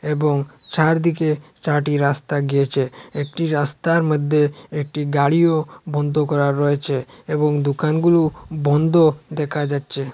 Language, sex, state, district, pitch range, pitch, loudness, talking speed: Bengali, male, Assam, Hailakandi, 145-155 Hz, 150 Hz, -19 LUFS, 105 wpm